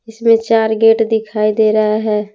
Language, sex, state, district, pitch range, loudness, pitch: Hindi, female, Jharkhand, Palamu, 215-225 Hz, -13 LUFS, 220 Hz